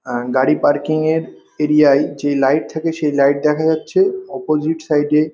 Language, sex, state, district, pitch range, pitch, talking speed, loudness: Bengali, male, West Bengal, North 24 Parganas, 140-160 Hz, 150 Hz, 170 wpm, -16 LUFS